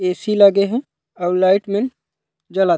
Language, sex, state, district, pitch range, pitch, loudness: Chhattisgarhi, male, Chhattisgarh, Raigarh, 185-210 Hz, 195 Hz, -17 LUFS